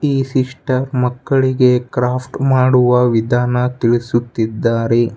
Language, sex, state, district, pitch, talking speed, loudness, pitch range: Kannada, male, Karnataka, Bangalore, 125 Hz, 80 wpm, -15 LUFS, 120-130 Hz